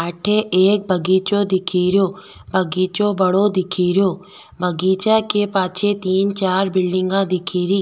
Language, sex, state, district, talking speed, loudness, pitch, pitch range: Rajasthani, female, Rajasthan, Nagaur, 130 wpm, -18 LUFS, 190 Hz, 185-200 Hz